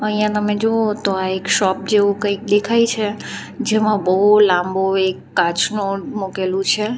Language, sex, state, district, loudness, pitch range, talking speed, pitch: Gujarati, female, Gujarat, Valsad, -17 LUFS, 190-215 Hz, 155 wpm, 205 Hz